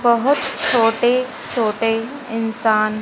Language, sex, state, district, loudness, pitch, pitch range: Hindi, female, Haryana, Jhajjar, -17 LUFS, 230 Hz, 225-255 Hz